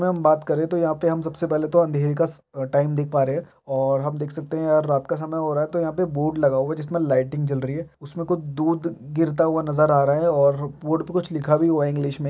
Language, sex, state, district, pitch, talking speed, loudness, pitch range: Maithili, male, Bihar, Araria, 155 Hz, 300 wpm, -22 LUFS, 145-165 Hz